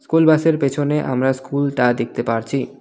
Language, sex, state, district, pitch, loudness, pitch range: Bengali, male, West Bengal, Alipurduar, 135 Hz, -18 LUFS, 125-150 Hz